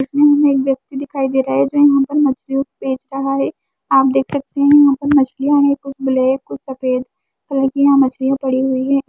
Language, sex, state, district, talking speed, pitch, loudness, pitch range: Hindi, female, Uttarakhand, Tehri Garhwal, 230 wpm, 275 Hz, -15 LUFS, 265-280 Hz